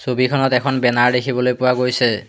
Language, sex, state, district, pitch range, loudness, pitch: Assamese, male, Assam, Hailakandi, 125-130 Hz, -17 LUFS, 125 Hz